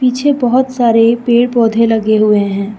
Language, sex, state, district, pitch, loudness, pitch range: Hindi, female, Jharkhand, Deoghar, 230 Hz, -11 LUFS, 215-245 Hz